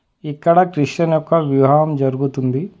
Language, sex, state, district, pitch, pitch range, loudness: Telugu, male, Telangana, Adilabad, 150 Hz, 135-165 Hz, -16 LUFS